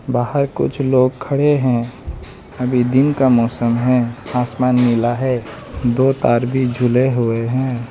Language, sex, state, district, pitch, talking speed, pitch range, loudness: Hindi, male, Arunachal Pradesh, Lower Dibang Valley, 125 Hz, 145 wpm, 120-130 Hz, -17 LUFS